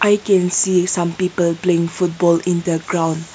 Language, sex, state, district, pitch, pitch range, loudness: English, female, Nagaland, Kohima, 175 Hz, 170-180 Hz, -17 LUFS